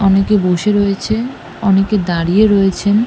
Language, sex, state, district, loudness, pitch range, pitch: Bengali, female, West Bengal, North 24 Parganas, -14 LUFS, 195-210 Hz, 200 Hz